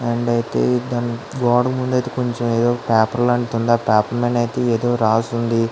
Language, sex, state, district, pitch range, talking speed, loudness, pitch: Telugu, female, Andhra Pradesh, Guntur, 115-120 Hz, 155 wpm, -19 LUFS, 120 Hz